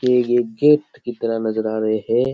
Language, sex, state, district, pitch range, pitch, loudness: Rajasthani, male, Rajasthan, Churu, 110-125 Hz, 120 Hz, -19 LUFS